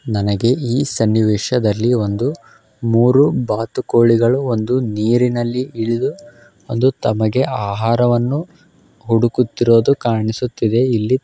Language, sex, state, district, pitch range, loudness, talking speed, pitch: Kannada, male, Karnataka, Bellary, 110-125 Hz, -16 LUFS, 70 wpm, 115 Hz